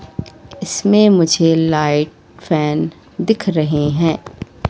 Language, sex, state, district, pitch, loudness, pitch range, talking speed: Hindi, female, Madhya Pradesh, Katni, 160 Hz, -16 LUFS, 150-185 Hz, 90 wpm